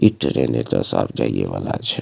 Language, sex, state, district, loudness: Maithili, male, Bihar, Supaul, -21 LUFS